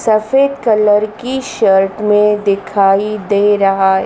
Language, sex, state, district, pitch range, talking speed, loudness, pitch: Hindi, female, Madhya Pradesh, Dhar, 195-215 Hz, 120 wpm, -13 LUFS, 210 Hz